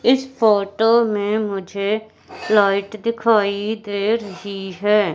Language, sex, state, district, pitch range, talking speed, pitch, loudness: Hindi, female, Madhya Pradesh, Katni, 200-220 Hz, 105 wpm, 210 Hz, -19 LUFS